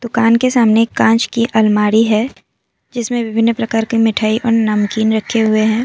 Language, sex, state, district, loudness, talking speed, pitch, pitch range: Hindi, female, Assam, Kamrup Metropolitan, -14 LUFS, 185 wpm, 225 Hz, 220-230 Hz